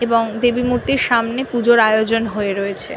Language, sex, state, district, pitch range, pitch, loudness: Bengali, female, West Bengal, North 24 Parganas, 220-245 Hz, 235 Hz, -17 LUFS